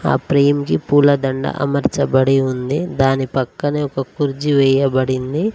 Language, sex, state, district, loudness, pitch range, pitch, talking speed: Telugu, female, Telangana, Mahabubabad, -17 LUFS, 130-145 Hz, 135 Hz, 120 wpm